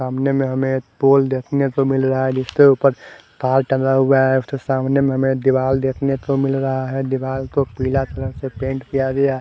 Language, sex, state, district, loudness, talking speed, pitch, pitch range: Hindi, male, Haryana, Charkhi Dadri, -18 LUFS, 230 wpm, 135 Hz, 130-135 Hz